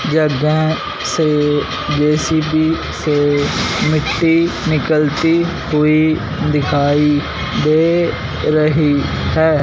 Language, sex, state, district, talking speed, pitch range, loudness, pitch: Hindi, male, Punjab, Fazilka, 70 wpm, 150-155 Hz, -15 LUFS, 155 Hz